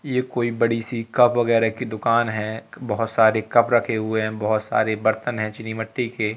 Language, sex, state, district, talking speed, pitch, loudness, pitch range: Hindi, male, Madhya Pradesh, Katni, 205 wpm, 115 Hz, -21 LUFS, 110-120 Hz